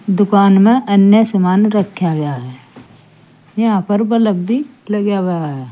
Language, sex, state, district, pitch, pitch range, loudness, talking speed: Hindi, female, Uttar Pradesh, Saharanpur, 200 Hz, 160-210 Hz, -14 LUFS, 145 wpm